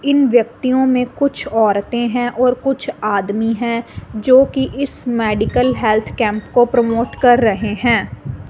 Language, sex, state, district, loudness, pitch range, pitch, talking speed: Hindi, female, Punjab, Fazilka, -16 LUFS, 215-255 Hz, 240 Hz, 140 wpm